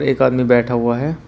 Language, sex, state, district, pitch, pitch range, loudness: Hindi, male, Uttar Pradesh, Shamli, 125 Hz, 120-135 Hz, -16 LUFS